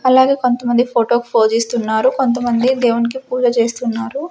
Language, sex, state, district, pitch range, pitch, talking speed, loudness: Telugu, female, Andhra Pradesh, Sri Satya Sai, 235-255 Hz, 240 Hz, 110 wpm, -16 LUFS